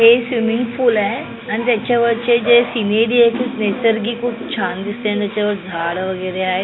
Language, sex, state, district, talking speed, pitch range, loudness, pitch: Marathi, female, Maharashtra, Mumbai Suburban, 170 wpm, 205-240 Hz, -17 LUFS, 230 Hz